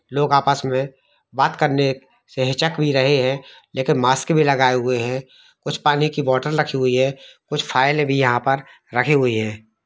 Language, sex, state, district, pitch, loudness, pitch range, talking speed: Hindi, male, Jharkhand, Jamtara, 135 Hz, -19 LUFS, 130-145 Hz, 195 wpm